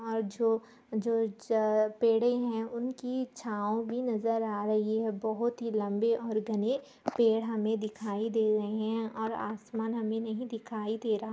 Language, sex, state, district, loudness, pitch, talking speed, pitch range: Hindi, female, Jharkhand, Sahebganj, -31 LUFS, 225 Hz, 170 wpm, 215-230 Hz